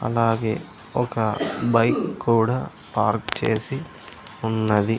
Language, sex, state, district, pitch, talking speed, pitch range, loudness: Telugu, male, Andhra Pradesh, Sri Satya Sai, 115 Hz, 85 wpm, 110-115 Hz, -23 LUFS